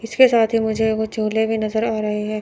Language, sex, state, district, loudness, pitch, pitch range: Hindi, female, Chandigarh, Chandigarh, -19 LUFS, 220 Hz, 215-225 Hz